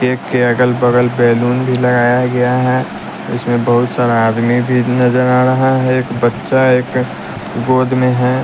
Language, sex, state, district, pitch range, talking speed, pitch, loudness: Hindi, male, Bihar, West Champaran, 120-125 Hz, 170 wpm, 125 Hz, -13 LUFS